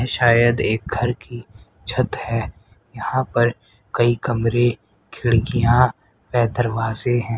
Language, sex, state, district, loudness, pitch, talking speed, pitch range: Hindi, female, Haryana, Rohtak, -20 LUFS, 120 Hz, 115 wpm, 110-120 Hz